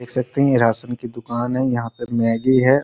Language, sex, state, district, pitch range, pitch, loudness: Hindi, male, Bihar, Sitamarhi, 120-130 Hz, 120 Hz, -19 LUFS